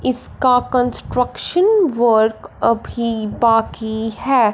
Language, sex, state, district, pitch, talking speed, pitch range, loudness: Hindi, male, Punjab, Fazilka, 235 Hz, 80 wpm, 225-255 Hz, -17 LUFS